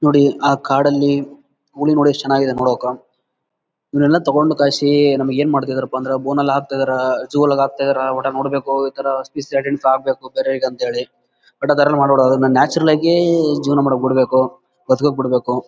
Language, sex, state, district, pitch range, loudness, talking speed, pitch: Kannada, male, Karnataka, Bellary, 130-145 Hz, -16 LUFS, 110 wpm, 140 Hz